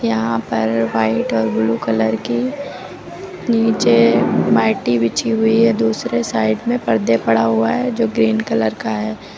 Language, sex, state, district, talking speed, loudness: Hindi, female, Uttar Pradesh, Lucknow, 155 wpm, -17 LUFS